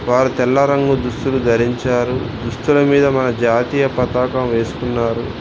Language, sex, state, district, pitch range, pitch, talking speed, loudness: Telugu, male, Telangana, Mahabubabad, 120-135 Hz, 125 Hz, 120 wpm, -16 LUFS